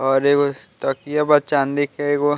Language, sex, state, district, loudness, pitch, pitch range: Bhojpuri, male, Bihar, Muzaffarpur, -19 LUFS, 145 Hz, 140-145 Hz